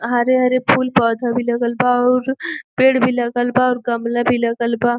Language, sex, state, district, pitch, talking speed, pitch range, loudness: Bhojpuri, female, Uttar Pradesh, Gorakhpur, 245 Hz, 190 wpm, 240-255 Hz, -17 LUFS